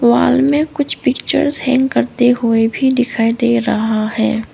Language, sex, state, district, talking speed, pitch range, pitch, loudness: Hindi, female, Arunachal Pradesh, Longding, 160 wpm, 225-265 Hz, 240 Hz, -14 LUFS